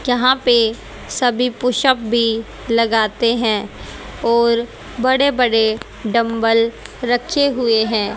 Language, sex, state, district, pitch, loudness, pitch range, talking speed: Hindi, female, Haryana, Charkhi Dadri, 235 Hz, -17 LUFS, 225-250 Hz, 105 wpm